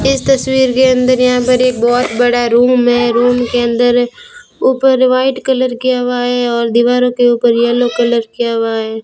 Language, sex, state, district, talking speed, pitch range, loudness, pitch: Hindi, female, Rajasthan, Bikaner, 190 wpm, 240-255 Hz, -12 LUFS, 245 Hz